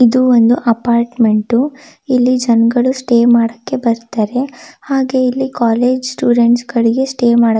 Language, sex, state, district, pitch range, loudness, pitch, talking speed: Kannada, female, Karnataka, Shimoga, 235-255 Hz, -13 LUFS, 245 Hz, 120 wpm